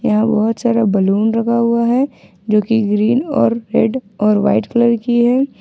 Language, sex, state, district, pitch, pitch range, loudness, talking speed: Hindi, female, Jharkhand, Ranchi, 230 Hz, 210-235 Hz, -15 LUFS, 180 wpm